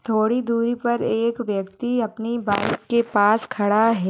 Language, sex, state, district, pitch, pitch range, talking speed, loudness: Hindi, female, Maharashtra, Nagpur, 225 Hz, 210-235 Hz, 160 wpm, -21 LUFS